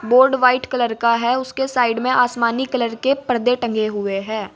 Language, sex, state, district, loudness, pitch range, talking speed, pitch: Hindi, female, Uttar Pradesh, Saharanpur, -18 LUFS, 230-255 Hz, 200 wpm, 245 Hz